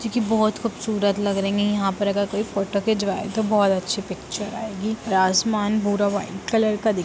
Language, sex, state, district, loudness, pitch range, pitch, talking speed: Hindi, female, Bihar, Jamui, -22 LUFS, 195-220 Hz, 205 Hz, 205 wpm